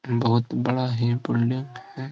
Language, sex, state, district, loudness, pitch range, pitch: Hindi, male, Jharkhand, Sahebganj, -24 LUFS, 120-130 Hz, 125 Hz